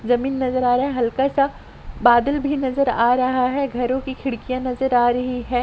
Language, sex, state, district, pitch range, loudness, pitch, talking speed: Hindi, female, Jharkhand, Sahebganj, 245-265 Hz, -20 LUFS, 255 Hz, 215 wpm